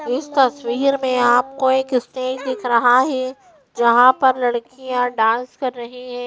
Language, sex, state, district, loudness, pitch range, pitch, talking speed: Hindi, female, Madhya Pradesh, Bhopal, -18 LUFS, 245-265 Hz, 255 Hz, 155 wpm